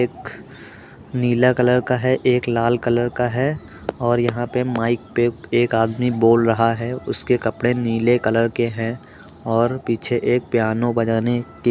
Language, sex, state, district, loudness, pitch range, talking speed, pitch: Hindi, male, Uttar Pradesh, Jyotiba Phule Nagar, -19 LUFS, 115-125 Hz, 180 wpm, 120 Hz